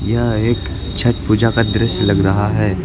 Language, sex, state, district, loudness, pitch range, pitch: Hindi, male, Uttar Pradesh, Lucknow, -16 LUFS, 95-115 Hz, 105 Hz